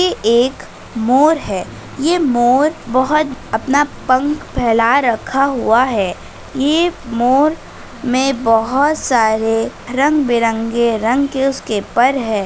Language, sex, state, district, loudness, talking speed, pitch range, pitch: Hindi, female, Bihar, Madhepura, -15 LUFS, 115 wpm, 230-280 Hz, 255 Hz